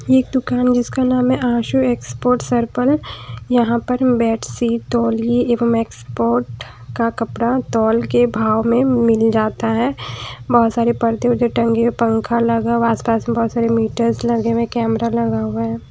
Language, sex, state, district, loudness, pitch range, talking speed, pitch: Hindi, female, Haryana, Jhajjar, -17 LUFS, 225-240 Hz, 160 wpm, 230 Hz